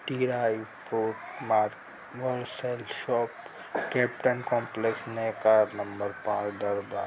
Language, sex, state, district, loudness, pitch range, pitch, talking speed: Hindi, female, Bihar, Darbhanga, -29 LUFS, 105-125 Hz, 115 Hz, 50 wpm